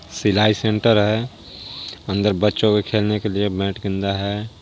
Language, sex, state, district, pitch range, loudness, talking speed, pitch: Hindi, male, Jharkhand, Garhwa, 100-110 Hz, -19 LUFS, 155 wpm, 105 Hz